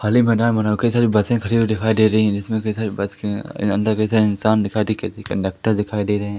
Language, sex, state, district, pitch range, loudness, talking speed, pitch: Hindi, male, Madhya Pradesh, Katni, 105-110 Hz, -19 LUFS, 290 wpm, 110 Hz